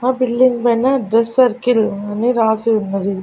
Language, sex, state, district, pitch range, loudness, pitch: Telugu, female, Andhra Pradesh, Annamaya, 215-250 Hz, -16 LUFS, 230 Hz